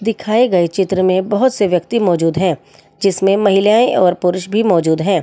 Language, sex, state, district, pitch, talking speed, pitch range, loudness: Hindi, female, Delhi, New Delhi, 190 Hz, 185 wpm, 180-210 Hz, -14 LUFS